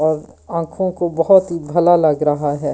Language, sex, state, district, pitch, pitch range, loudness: Hindi, female, Delhi, New Delhi, 165 Hz, 150-175 Hz, -16 LUFS